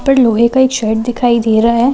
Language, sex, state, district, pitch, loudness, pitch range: Hindi, female, Chhattisgarh, Bilaspur, 240 Hz, -12 LUFS, 230-255 Hz